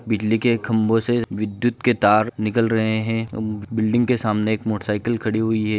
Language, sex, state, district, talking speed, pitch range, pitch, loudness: Hindi, male, Andhra Pradesh, Guntur, 155 wpm, 110-115 Hz, 110 Hz, -21 LUFS